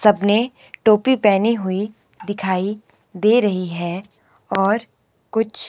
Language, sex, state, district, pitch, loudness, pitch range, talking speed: Hindi, male, Himachal Pradesh, Shimla, 205 Hz, -19 LUFS, 190-220 Hz, 125 wpm